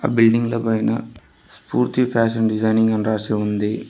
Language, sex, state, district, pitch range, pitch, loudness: Telugu, male, Telangana, Mahabubabad, 110-115 Hz, 110 Hz, -19 LUFS